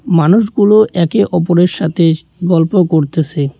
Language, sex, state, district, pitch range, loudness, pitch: Bengali, male, West Bengal, Cooch Behar, 160-200 Hz, -12 LUFS, 175 Hz